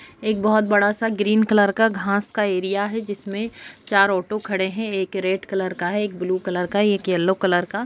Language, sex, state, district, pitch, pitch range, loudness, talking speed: Hindi, female, Bihar, Saharsa, 200 Hz, 190-210 Hz, -21 LUFS, 220 wpm